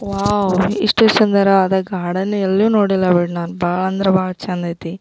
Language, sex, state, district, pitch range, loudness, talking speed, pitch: Kannada, female, Karnataka, Belgaum, 180-200 Hz, -16 LUFS, 145 wpm, 190 Hz